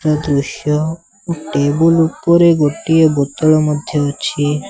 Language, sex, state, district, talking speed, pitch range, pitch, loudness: Odia, male, Odisha, Sambalpur, 100 wpm, 145-165 Hz, 155 Hz, -14 LUFS